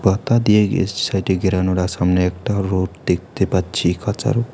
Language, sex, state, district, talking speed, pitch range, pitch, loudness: Bengali, male, West Bengal, Alipurduar, 145 wpm, 90-105 Hz, 95 Hz, -18 LUFS